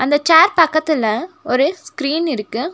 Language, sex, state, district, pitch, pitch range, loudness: Tamil, female, Tamil Nadu, Nilgiris, 310 Hz, 280-330 Hz, -16 LUFS